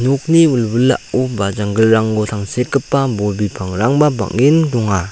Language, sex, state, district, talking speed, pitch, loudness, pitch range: Garo, male, Meghalaya, South Garo Hills, 105 wpm, 115 Hz, -15 LUFS, 105-135 Hz